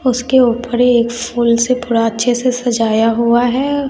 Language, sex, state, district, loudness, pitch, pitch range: Hindi, female, Bihar, West Champaran, -14 LUFS, 240 Hz, 235-250 Hz